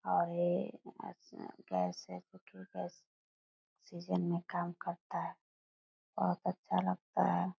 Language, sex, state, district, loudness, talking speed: Hindi, female, Bihar, Purnia, -38 LUFS, 125 wpm